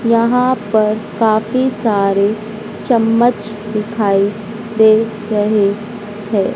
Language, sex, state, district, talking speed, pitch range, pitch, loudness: Hindi, female, Madhya Pradesh, Dhar, 80 wpm, 210-225 Hz, 215 Hz, -15 LUFS